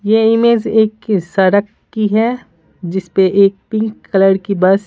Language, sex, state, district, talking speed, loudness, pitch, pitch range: Hindi, female, Bihar, Patna, 170 wpm, -14 LUFS, 205 Hz, 195-220 Hz